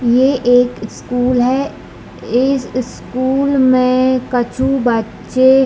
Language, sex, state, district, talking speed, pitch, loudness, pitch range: Hindi, female, Bihar, East Champaran, 105 wpm, 255 Hz, -15 LUFS, 245-265 Hz